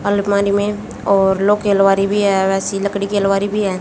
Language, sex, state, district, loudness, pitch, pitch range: Hindi, female, Haryana, Jhajjar, -16 LUFS, 200 Hz, 195-200 Hz